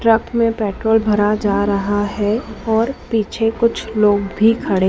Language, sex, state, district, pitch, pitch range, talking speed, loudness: Hindi, female, Madhya Pradesh, Dhar, 215 Hz, 205-225 Hz, 160 wpm, -17 LUFS